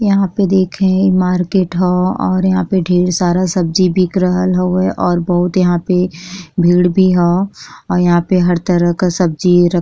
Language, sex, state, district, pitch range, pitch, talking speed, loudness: Bhojpuri, female, Uttar Pradesh, Gorakhpur, 175-185 Hz, 180 Hz, 175 wpm, -13 LUFS